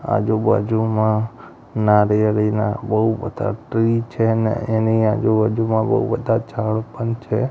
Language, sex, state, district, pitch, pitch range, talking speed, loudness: Gujarati, male, Gujarat, Gandhinagar, 110 Hz, 110-115 Hz, 130 wpm, -19 LUFS